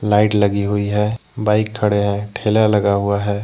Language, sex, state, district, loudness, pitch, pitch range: Hindi, male, Jharkhand, Deoghar, -17 LUFS, 105 Hz, 100-105 Hz